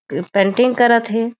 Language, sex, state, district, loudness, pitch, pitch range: Chhattisgarhi, female, Chhattisgarh, Raigarh, -15 LUFS, 230 Hz, 205-240 Hz